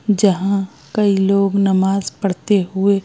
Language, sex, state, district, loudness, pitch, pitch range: Hindi, female, Madhya Pradesh, Bhopal, -17 LUFS, 195 Hz, 195-200 Hz